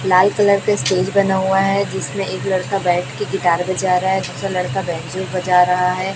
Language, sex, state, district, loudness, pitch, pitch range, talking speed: Hindi, female, Chhattisgarh, Raipur, -17 LUFS, 185 Hz, 180-195 Hz, 205 wpm